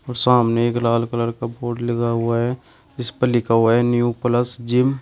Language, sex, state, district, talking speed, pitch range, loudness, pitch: Hindi, male, Uttar Pradesh, Shamli, 205 wpm, 115-125 Hz, -19 LUFS, 120 Hz